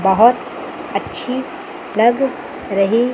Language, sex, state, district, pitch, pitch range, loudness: Hindi, female, Chandigarh, Chandigarh, 245 Hz, 225-270 Hz, -17 LUFS